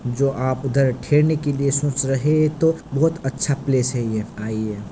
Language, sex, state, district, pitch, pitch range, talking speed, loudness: Hindi, male, Bihar, Kishanganj, 135 Hz, 130-145 Hz, 195 wpm, -20 LUFS